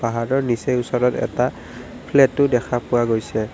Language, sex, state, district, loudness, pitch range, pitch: Assamese, male, Assam, Kamrup Metropolitan, -20 LUFS, 115-130 Hz, 120 Hz